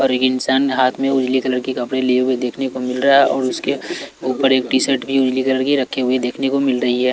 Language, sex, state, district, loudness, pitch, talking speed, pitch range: Hindi, male, Chhattisgarh, Raipur, -17 LUFS, 130 Hz, 270 wpm, 130-135 Hz